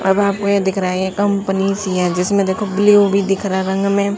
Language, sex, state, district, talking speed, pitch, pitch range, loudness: Hindi, female, Haryana, Charkhi Dadri, 270 wpm, 195 Hz, 190-200 Hz, -16 LUFS